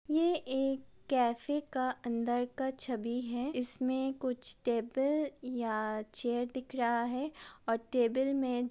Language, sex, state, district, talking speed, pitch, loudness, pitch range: Hindi, female, Chhattisgarh, Raigarh, 130 wpm, 255 Hz, -34 LUFS, 240-270 Hz